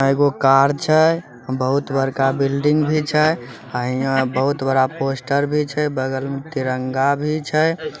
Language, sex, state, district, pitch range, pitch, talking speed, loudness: Maithili, male, Bihar, Samastipur, 130-150 Hz, 140 Hz, 150 wpm, -19 LUFS